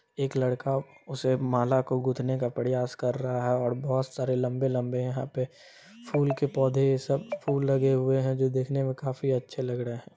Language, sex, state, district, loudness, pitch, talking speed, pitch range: Hindi, male, Bihar, Supaul, -28 LUFS, 130 Hz, 195 wpm, 125-135 Hz